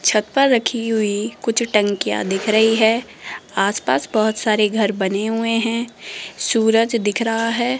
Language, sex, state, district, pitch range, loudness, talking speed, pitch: Hindi, female, Rajasthan, Jaipur, 215-230 Hz, -18 LUFS, 155 wpm, 225 Hz